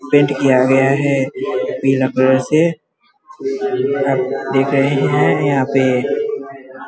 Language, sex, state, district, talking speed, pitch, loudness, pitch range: Hindi, male, Bihar, Vaishali, 120 wpm, 135 Hz, -16 LUFS, 135-155 Hz